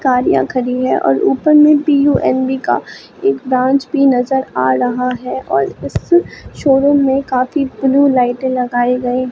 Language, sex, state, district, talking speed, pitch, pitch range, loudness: Hindi, female, Bihar, Katihar, 155 wpm, 260 Hz, 250-280 Hz, -14 LUFS